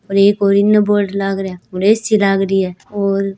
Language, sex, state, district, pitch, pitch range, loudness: Hindi, female, Rajasthan, Churu, 195 Hz, 195-205 Hz, -15 LUFS